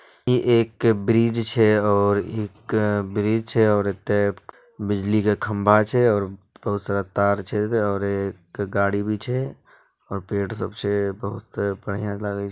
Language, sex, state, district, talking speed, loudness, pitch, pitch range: Hindi, male, Bihar, Bhagalpur, 160 wpm, -22 LUFS, 105 Hz, 100-110 Hz